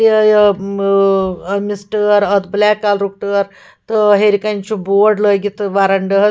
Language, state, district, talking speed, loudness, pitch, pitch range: Kashmiri, Punjab, Kapurthala, 150 wpm, -14 LUFS, 205 Hz, 195-210 Hz